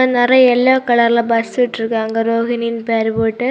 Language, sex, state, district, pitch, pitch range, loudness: Tamil, female, Tamil Nadu, Kanyakumari, 235 Hz, 225-245 Hz, -15 LUFS